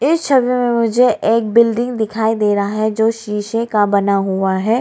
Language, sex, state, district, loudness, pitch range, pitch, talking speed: Hindi, female, Arunachal Pradesh, Lower Dibang Valley, -15 LUFS, 210-235 Hz, 225 Hz, 200 wpm